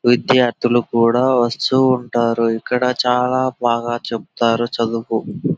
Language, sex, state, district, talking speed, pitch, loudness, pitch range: Telugu, male, Andhra Pradesh, Anantapur, 95 wpm, 120 Hz, -17 LUFS, 115-125 Hz